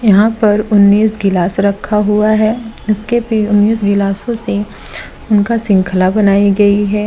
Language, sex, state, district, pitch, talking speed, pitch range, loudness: Hindi, female, Gujarat, Valsad, 210 Hz, 145 wpm, 200-215 Hz, -12 LUFS